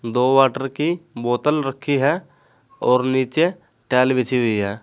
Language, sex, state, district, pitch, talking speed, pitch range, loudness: Hindi, male, Uttar Pradesh, Saharanpur, 130 Hz, 150 wpm, 120-140 Hz, -20 LUFS